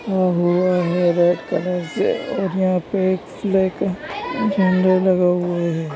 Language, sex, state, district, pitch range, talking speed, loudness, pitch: Hindi, female, Chhattisgarh, Raigarh, 175-190 Hz, 160 wpm, -19 LUFS, 185 Hz